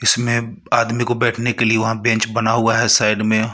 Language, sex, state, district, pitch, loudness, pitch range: Hindi, male, Jharkhand, Ranchi, 115 Hz, -17 LUFS, 110-120 Hz